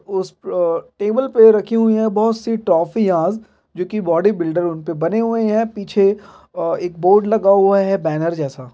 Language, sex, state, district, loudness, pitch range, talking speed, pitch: Hindi, male, Bihar, Purnia, -17 LUFS, 170-220 Hz, 170 wpm, 195 Hz